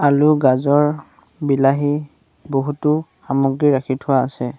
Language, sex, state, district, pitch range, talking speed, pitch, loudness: Assamese, male, Assam, Sonitpur, 135-145 Hz, 105 wpm, 140 Hz, -18 LUFS